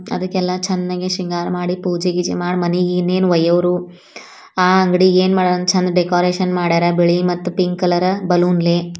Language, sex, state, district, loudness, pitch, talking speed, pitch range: Kannada, female, Karnataka, Bijapur, -16 LUFS, 180 Hz, 145 wpm, 175-185 Hz